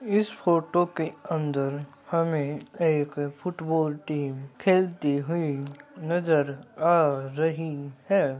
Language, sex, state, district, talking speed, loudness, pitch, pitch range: Hindi, male, Bihar, Samastipur, 100 wpm, -27 LUFS, 155 Hz, 145-170 Hz